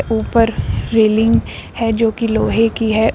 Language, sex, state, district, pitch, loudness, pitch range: Hindi, female, Uttar Pradesh, Shamli, 225 Hz, -15 LUFS, 220-230 Hz